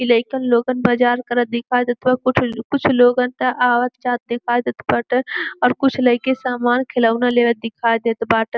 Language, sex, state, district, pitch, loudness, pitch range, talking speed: Bhojpuri, female, Uttar Pradesh, Gorakhpur, 245 Hz, -18 LUFS, 235-250 Hz, 180 wpm